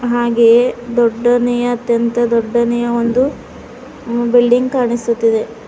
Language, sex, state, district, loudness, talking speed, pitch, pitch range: Kannada, female, Karnataka, Bidar, -14 LUFS, 85 wpm, 240 Hz, 235-245 Hz